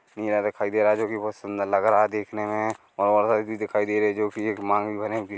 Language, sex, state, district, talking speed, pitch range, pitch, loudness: Hindi, male, Chhattisgarh, Korba, 280 wpm, 105-110 Hz, 105 Hz, -24 LUFS